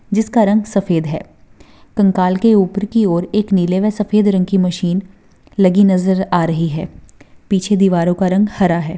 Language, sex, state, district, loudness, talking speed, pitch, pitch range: Hindi, female, Maharashtra, Pune, -15 LUFS, 185 wpm, 190 Hz, 180-210 Hz